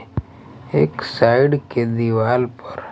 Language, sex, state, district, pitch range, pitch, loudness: Hindi, male, Maharashtra, Mumbai Suburban, 115-125 Hz, 120 Hz, -18 LUFS